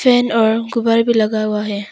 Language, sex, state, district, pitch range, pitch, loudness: Hindi, female, Arunachal Pradesh, Papum Pare, 215-235 Hz, 225 Hz, -16 LUFS